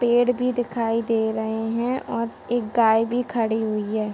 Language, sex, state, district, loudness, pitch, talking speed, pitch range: Hindi, female, Uttar Pradesh, Jalaun, -23 LUFS, 230 Hz, 190 wpm, 220-245 Hz